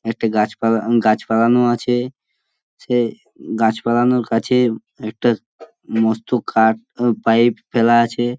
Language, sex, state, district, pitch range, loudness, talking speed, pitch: Bengali, male, West Bengal, Purulia, 110-120 Hz, -17 LUFS, 100 wpm, 115 Hz